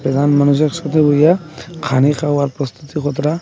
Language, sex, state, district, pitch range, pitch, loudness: Bengali, male, Assam, Hailakandi, 140-155 Hz, 145 Hz, -15 LUFS